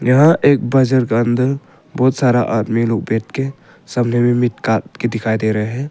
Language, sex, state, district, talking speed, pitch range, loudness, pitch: Hindi, male, Arunachal Pradesh, Longding, 195 wpm, 115-130 Hz, -16 LUFS, 120 Hz